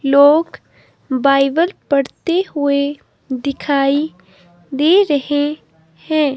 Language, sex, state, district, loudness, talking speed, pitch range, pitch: Hindi, female, Himachal Pradesh, Shimla, -16 LUFS, 75 wpm, 270-300 Hz, 280 Hz